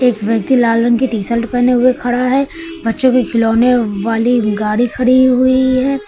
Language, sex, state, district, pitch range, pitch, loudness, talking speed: Hindi, female, Uttar Pradesh, Lucknow, 230-255 Hz, 245 Hz, -13 LUFS, 180 wpm